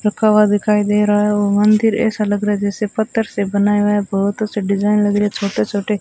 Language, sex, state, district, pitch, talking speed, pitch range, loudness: Hindi, female, Rajasthan, Bikaner, 205 Hz, 250 wpm, 205-210 Hz, -16 LUFS